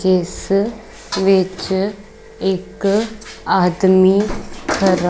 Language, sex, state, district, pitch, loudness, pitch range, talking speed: Punjabi, female, Punjab, Kapurthala, 195 Hz, -17 LUFS, 185-205 Hz, 60 wpm